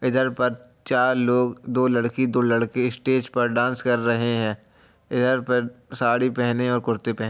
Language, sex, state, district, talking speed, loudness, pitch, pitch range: Hindi, male, Uttar Pradesh, Jalaun, 180 wpm, -22 LUFS, 125 Hz, 120-125 Hz